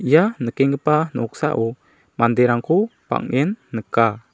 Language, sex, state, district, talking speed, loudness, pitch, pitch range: Garo, male, Meghalaya, South Garo Hills, 85 wpm, -20 LUFS, 125 Hz, 115-150 Hz